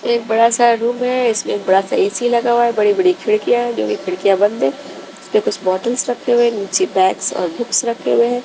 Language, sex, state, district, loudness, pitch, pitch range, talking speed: Hindi, female, Bihar, West Champaran, -16 LUFS, 235 Hz, 195-240 Hz, 225 wpm